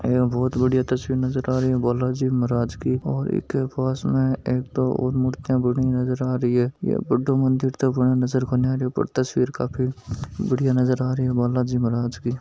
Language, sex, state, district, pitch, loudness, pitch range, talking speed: Hindi, male, Rajasthan, Nagaur, 130 Hz, -23 LUFS, 125-130 Hz, 195 wpm